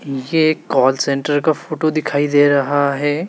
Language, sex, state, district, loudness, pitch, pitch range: Hindi, male, Madhya Pradesh, Dhar, -16 LUFS, 145 Hz, 140-155 Hz